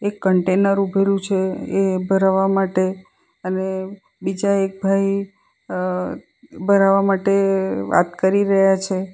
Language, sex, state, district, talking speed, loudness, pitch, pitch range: Gujarati, female, Gujarat, Valsad, 120 wpm, -19 LUFS, 195 Hz, 190-195 Hz